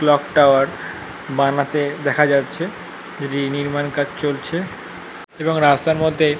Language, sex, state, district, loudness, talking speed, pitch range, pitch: Bengali, male, West Bengal, North 24 Parganas, -19 LUFS, 130 wpm, 140-150 Hz, 145 Hz